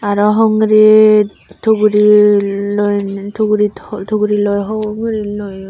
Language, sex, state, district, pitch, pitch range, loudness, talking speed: Chakma, female, Tripura, Unakoti, 210 Hz, 205-215 Hz, -13 LUFS, 105 wpm